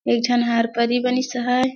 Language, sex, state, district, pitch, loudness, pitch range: Surgujia, female, Chhattisgarh, Sarguja, 245 Hz, -20 LUFS, 235-250 Hz